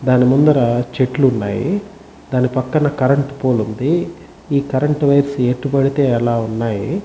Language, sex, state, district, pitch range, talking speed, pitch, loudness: Telugu, male, Andhra Pradesh, Chittoor, 125-145 Hz, 130 wpm, 135 Hz, -16 LUFS